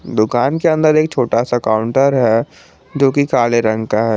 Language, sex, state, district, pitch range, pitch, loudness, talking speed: Hindi, male, Jharkhand, Garhwa, 110-140 Hz, 120 Hz, -15 LUFS, 200 wpm